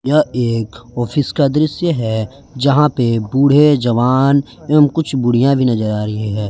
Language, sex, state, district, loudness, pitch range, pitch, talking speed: Hindi, male, Jharkhand, Garhwa, -15 LUFS, 115-145 Hz, 130 Hz, 155 wpm